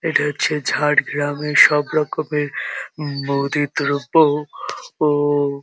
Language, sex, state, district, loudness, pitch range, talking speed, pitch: Bengali, male, West Bengal, Jhargram, -18 LUFS, 145-150 Hz, 95 wpm, 145 Hz